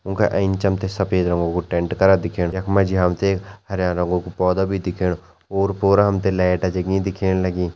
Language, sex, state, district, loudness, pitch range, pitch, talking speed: Hindi, male, Uttarakhand, Tehri Garhwal, -20 LUFS, 90-95 Hz, 95 Hz, 195 wpm